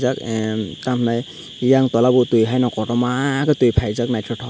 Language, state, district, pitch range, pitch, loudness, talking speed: Kokborok, Tripura, Dhalai, 115-125 Hz, 120 Hz, -18 LUFS, 175 wpm